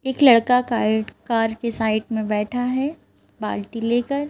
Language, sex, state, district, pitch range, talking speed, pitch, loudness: Hindi, female, Madhya Pradesh, Bhopal, 220-250 Hz, 165 wpm, 235 Hz, -21 LUFS